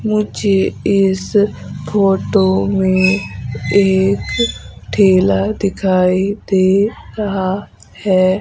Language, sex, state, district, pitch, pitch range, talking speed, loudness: Hindi, female, Madhya Pradesh, Umaria, 190 Hz, 180-200 Hz, 70 wpm, -15 LUFS